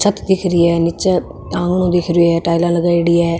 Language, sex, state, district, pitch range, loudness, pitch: Marwari, female, Rajasthan, Nagaur, 170-180 Hz, -15 LUFS, 170 Hz